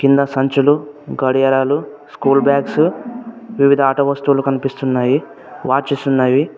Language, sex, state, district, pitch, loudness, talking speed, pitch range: Telugu, male, Telangana, Mahabubabad, 140 Hz, -15 LUFS, 80 wpm, 135-145 Hz